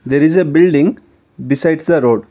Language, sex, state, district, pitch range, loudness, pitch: English, male, Karnataka, Bangalore, 135-170 Hz, -13 LUFS, 155 Hz